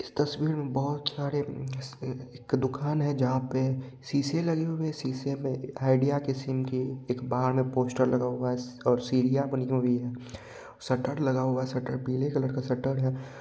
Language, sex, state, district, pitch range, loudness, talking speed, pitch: Hindi, male, Bihar, Purnia, 130-140 Hz, -29 LUFS, 190 wpm, 130 Hz